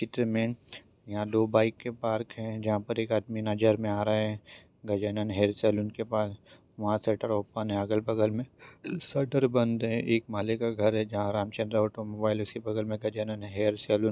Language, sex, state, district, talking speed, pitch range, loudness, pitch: Hindi, male, Maharashtra, Chandrapur, 195 wpm, 105-115 Hz, -30 LUFS, 110 Hz